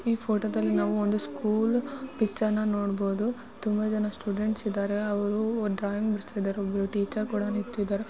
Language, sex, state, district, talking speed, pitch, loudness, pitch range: Kannada, female, Karnataka, Shimoga, 135 wpm, 210 Hz, -29 LUFS, 205-220 Hz